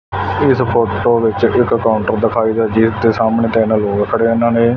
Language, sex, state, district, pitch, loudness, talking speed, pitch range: Punjabi, male, Punjab, Fazilka, 115 Hz, -14 LUFS, 190 wpm, 110-115 Hz